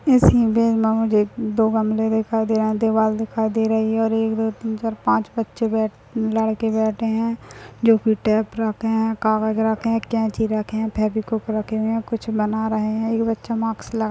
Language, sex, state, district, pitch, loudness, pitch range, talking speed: Hindi, female, Chhattisgarh, Bastar, 220 Hz, -21 LUFS, 220-225 Hz, 215 wpm